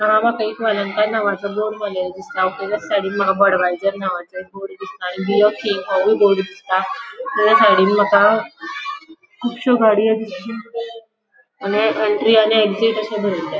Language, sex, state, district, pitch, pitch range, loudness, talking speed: Konkani, female, Goa, North and South Goa, 215 Hz, 195-225 Hz, -17 LUFS, 125 wpm